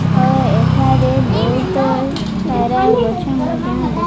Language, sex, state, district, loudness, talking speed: Odia, female, Odisha, Malkangiri, -15 LUFS, 120 wpm